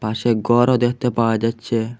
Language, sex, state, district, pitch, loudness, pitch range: Bengali, male, Assam, Hailakandi, 115 Hz, -18 LUFS, 115-120 Hz